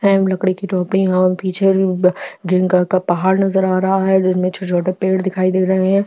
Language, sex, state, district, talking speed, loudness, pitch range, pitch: Hindi, female, Chhattisgarh, Jashpur, 285 wpm, -16 LUFS, 185-190 Hz, 185 Hz